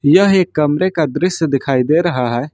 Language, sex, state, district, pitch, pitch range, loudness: Hindi, male, Jharkhand, Ranchi, 155 Hz, 140-180 Hz, -15 LUFS